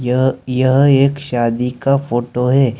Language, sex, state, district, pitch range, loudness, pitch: Hindi, male, Jharkhand, Deoghar, 125-135 Hz, -15 LUFS, 130 Hz